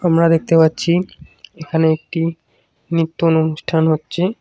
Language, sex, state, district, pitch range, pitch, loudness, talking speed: Bengali, male, West Bengal, Cooch Behar, 160-170 Hz, 165 Hz, -17 LUFS, 110 wpm